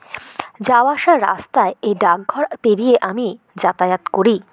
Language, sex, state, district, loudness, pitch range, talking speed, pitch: Bengali, female, West Bengal, Jalpaiguri, -16 LUFS, 190-250 Hz, 120 wpm, 225 Hz